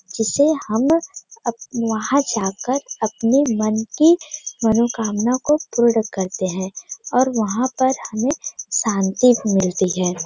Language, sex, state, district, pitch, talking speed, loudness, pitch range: Hindi, female, Uttar Pradesh, Varanasi, 230 Hz, 115 wpm, -19 LUFS, 215-265 Hz